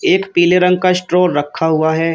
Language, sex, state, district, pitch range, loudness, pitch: Hindi, male, Uttar Pradesh, Shamli, 160-180 Hz, -14 LUFS, 180 Hz